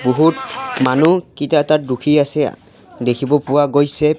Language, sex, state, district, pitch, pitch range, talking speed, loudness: Assamese, male, Assam, Sonitpur, 150 Hz, 140-155 Hz, 145 wpm, -16 LUFS